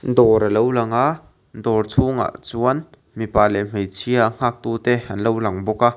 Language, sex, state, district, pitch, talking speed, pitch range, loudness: Mizo, male, Mizoram, Aizawl, 115 Hz, 190 wpm, 110-125 Hz, -19 LUFS